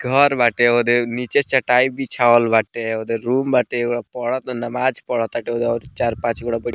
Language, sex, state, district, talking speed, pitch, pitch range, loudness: Bhojpuri, male, Bihar, Muzaffarpur, 160 wpm, 120 Hz, 115-125 Hz, -19 LUFS